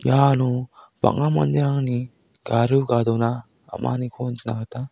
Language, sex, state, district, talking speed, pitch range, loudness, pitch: Garo, male, Meghalaya, South Garo Hills, 95 wpm, 115-130 Hz, -22 LUFS, 125 Hz